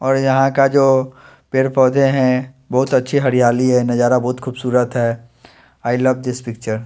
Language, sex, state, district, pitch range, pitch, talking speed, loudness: Hindi, male, Chandigarh, Chandigarh, 125-135 Hz, 130 Hz, 175 wpm, -16 LUFS